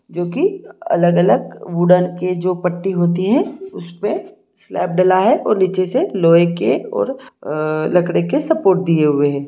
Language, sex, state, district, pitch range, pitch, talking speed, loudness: Hindi, male, Jharkhand, Jamtara, 175-195 Hz, 180 Hz, 160 wpm, -16 LUFS